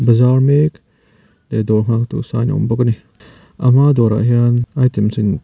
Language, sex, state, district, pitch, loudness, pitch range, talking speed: Mizo, male, Mizoram, Aizawl, 120 Hz, -15 LUFS, 115-130 Hz, 175 wpm